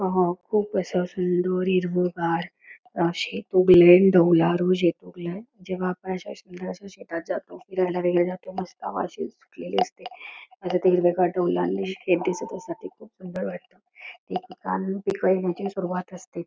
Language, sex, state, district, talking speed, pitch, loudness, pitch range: Marathi, female, Karnataka, Belgaum, 90 wpm, 180 Hz, -24 LUFS, 175-185 Hz